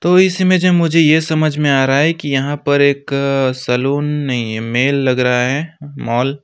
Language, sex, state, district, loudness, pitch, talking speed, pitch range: Hindi, male, West Bengal, Alipurduar, -15 LUFS, 140 Hz, 225 wpm, 130-155 Hz